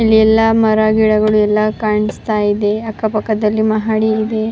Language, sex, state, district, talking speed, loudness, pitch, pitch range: Kannada, female, Karnataka, Raichur, 145 wpm, -14 LUFS, 215 Hz, 215-220 Hz